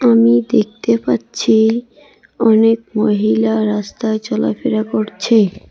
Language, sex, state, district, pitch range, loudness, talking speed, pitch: Bengali, female, West Bengal, Cooch Behar, 215-230 Hz, -15 LUFS, 85 wpm, 220 Hz